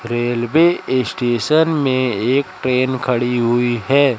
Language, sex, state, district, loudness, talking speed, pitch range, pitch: Hindi, male, Madhya Pradesh, Katni, -17 LUFS, 115 wpm, 120-140 Hz, 130 Hz